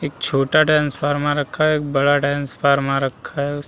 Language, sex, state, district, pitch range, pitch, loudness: Hindi, male, Uttar Pradesh, Muzaffarnagar, 140-145 Hz, 145 Hz, -18 LUFS